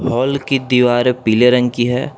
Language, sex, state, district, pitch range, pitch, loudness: Hindi, male, Jharkhand, Palamu, 125-130 Hz, 125 Hz, -14 LUFS